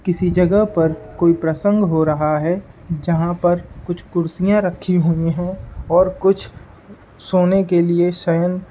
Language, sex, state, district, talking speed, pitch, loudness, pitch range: Hindi, male, Uttar Pradesh, Ghazipur, 150 wpm, 175 Hz, -18 LUFS, 170-185 Hz